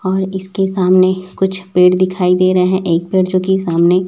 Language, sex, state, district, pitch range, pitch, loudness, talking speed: Hindi, male, Chhattisgarh, Raipur, 180-190 Hz, 185 Hz, -14 LUFS, 190 wpm